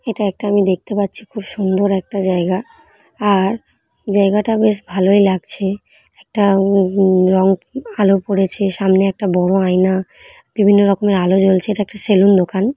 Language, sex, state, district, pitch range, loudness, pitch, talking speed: Bengali, female, West Bengal, North 24 Parganas, 190-210 Hz, -15 LUFS, 195 Hz, 150 wpm